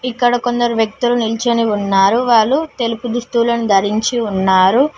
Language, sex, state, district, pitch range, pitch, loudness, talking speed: Telugu, female, Telangana, Mahabubabad, 215-245 Hz, 235 Hz, -15 LUFS, 120 wpm